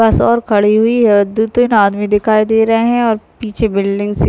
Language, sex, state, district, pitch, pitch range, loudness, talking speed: Hindi, female, Chhattisgarh, Raigarh, 220 Hz, 205-225 Hz, -12 LUFS, 225 wpm